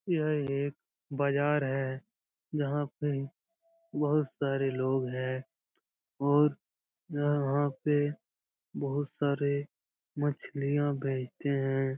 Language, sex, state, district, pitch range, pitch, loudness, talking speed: Hindi, male, Bihar, Jahanabad, 135-150 Hz, 145 Hz, -31 LUFS, 95 wpm